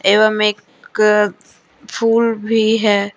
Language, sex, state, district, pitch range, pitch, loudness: Hindi, female, Jharkhand, Deoghar, 205-225 Hz, 215 Hz, -15 LUFS